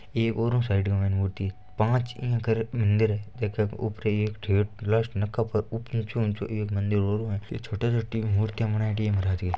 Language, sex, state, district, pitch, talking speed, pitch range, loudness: Marwari, male, Rajasthan, Nagaur, 105 Hz, 175 wpm, 105-115 Hz, -27 LUFS